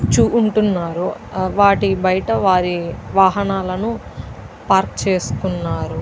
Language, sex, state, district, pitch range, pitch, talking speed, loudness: Telugu, female, Andhra Pradesh, Chittoor, 180-200 Hz, 190 Hz, 70 wpm, -17 LUFS